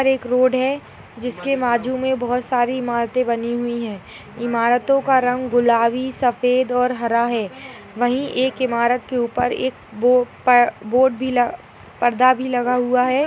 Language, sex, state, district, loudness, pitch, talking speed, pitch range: Hindi, female, Bihar, Purnia, -19 LUFS, 250 Hz, 165 wpm, 240-255 Hz